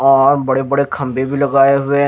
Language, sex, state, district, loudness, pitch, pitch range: Hindi, male, Punjab, Kapurthala, -14 LUFS, 140 Hz, 135-140 Hz